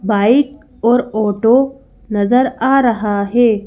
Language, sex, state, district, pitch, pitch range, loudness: Hindi, female, Madhya Pradesh, Bhopal, 235 Hz, 210-260 Hz, -14 LUFS